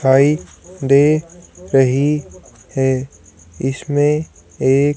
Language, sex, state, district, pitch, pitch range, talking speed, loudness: Hindi, female, Haryana, Charkhi Dadri, 135 Hz, 130-150 Hz, 70 wpm, -17 LUFS